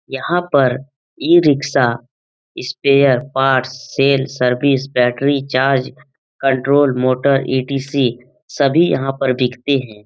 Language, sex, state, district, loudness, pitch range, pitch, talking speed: Hindi, male, Bihar, Jamui, -16 LUFS, 130-140 Hz, 135 Hz, 100 wpm